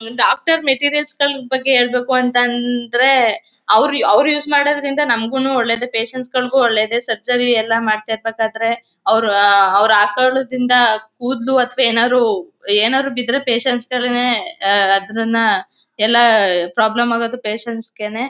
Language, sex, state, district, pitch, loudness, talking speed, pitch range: Kannada, female, Karnataka, Mysore, 240 Hz, -15 LUFS, 120 wpm, 225-260 Hz